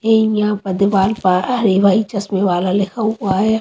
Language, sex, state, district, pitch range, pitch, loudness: Hindi, female, Haryana, Rohtak, 190-220 Hz, 200 Hz, -16 LUFS